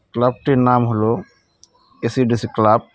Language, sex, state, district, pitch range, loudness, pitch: Bengali, male, West Bengal, Cooch Behar, 115-125 Hz, -18 LUFS, 120 Hz